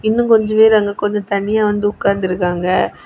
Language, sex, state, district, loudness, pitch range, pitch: Tamil, female, Tamil Nadu, Kanyakumari, -15 LUFS, 200-215 Hz, 205 Hz